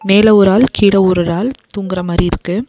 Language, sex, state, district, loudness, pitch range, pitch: Tamil, female, Tamil Nadu, Nilgiris, -12 LUFS, 185-215 Hz, 200 Hz